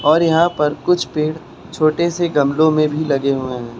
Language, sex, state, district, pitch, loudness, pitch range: Hindi, male, Uttar Pradesh, Lucknow, 155 Hz, -17 LUFS, 140-165 Hz